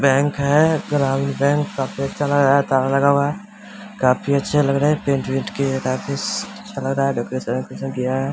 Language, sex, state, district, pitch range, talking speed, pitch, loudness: Hindi, male, Bihar, Samastipur, 135-145 Hz, 250 wpm, 140 Hz, -20 LUFS